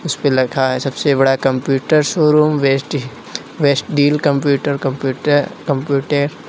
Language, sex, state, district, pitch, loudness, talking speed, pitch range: Hindi, male, Uttar Pradesh, Lalitpur, 140 Hz, -16 LUFS, 110 wpm, 135-145 Hz